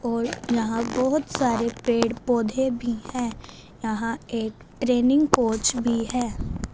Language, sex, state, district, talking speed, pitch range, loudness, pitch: Hindi, female, Punjab, Fazilka, 125 wpm, 230-250 Hz, -24 LUFS, 235 Hz